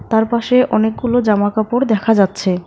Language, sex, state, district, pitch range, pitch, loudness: Bengali, female, West Bengal, Alipurduar, 205-235 Hz, 220 Hz, -15 LUFS